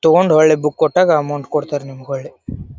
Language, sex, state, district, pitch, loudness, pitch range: Kannada, male, Karnataka, Dharwad, 150 Hz, -16 LUFS, 140-155 Hz